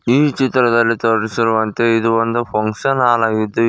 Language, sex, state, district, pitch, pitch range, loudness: Kannada, male, Karnataka, Koppal, 115 Hz, 110-120 Hz, -16 LUFS